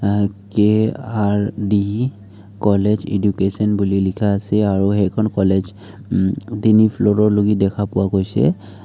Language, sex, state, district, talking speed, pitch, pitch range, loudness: Assamese, male, Assam, Kamrup Metropolitan, 110 wpm, 100 Hz, 100-105 Hz, -17 LUFS